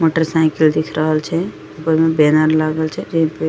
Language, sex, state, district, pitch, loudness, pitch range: Maithili, female, Bihar, Madhepura, 155 Hz, -16 LUFS, 155-160 Hz